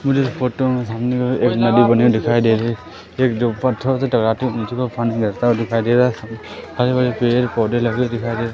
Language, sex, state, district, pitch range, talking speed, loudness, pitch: Hindi, male, Madhya Pradesh, Katni, 115-125 Hz, 245 wpm, -18 LUFS, 120 Hz